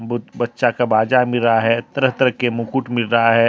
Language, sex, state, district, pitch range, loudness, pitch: Hindi, male, Jharkhand, Deoghar, 115-125 Hz, -18 LUFS, 120 Hz